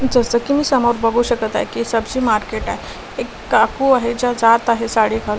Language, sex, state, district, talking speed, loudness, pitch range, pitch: Marathi, female, Maharashtra, Washim, 200 wpm, -17 LUFS, 225-245 Hz, 235 Hz